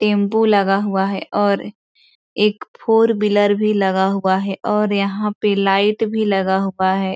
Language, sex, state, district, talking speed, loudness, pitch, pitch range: Hindi, female, Bihar, East Champaran, 165 wpm, -17 LUFS, 200 Hz, 195-210 Hz